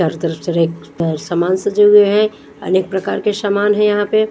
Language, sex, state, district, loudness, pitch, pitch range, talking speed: Hindi, female, Odisha, Nuapada, -15 LUFS, 195 Hz, 170-210 Hz, 195 wpm